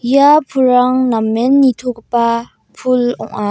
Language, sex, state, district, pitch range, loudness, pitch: Garo, female, Meghalaya, West Garo Hills, 235-260 Hz, -13 LUFS, 250 Hz